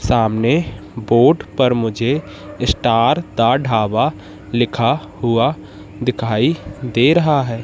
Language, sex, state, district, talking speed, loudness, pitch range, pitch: Hindi, male, Madhya Pradesh, Katni, 100 wpm, -17 LUFS, 110-130 Hz, 115 Hz